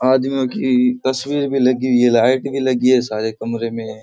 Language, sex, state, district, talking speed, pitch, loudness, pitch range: Rajasthani, male, Rajasthan, Churu, 210 wpm, 130 Hz, -17 LUFS, 115-130 Hz